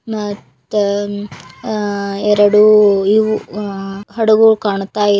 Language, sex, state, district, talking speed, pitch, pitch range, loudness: Kannada, female, Karnataka, Belgaum, 90 wpm, 205 Hz, 200-215 Hz, -14 LUFS